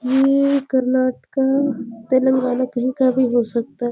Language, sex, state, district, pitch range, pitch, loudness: Hindi, female, Chhattisgarh, Bastar, 250-265 Hz, 260 Hz, -18 LUFS